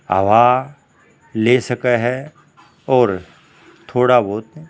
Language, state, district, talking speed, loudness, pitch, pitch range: Haryanvi, Haryana, Rohtak, 100 wpm, -16 LUFS, 125 Hz, 120-145 Hz